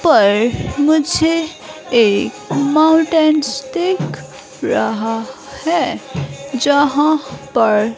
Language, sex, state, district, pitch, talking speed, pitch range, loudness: Hindi, female, Himachal Pradesh, Shimla, 285 Hz, 70 wpm, 230-320 Hz, -16 LUFS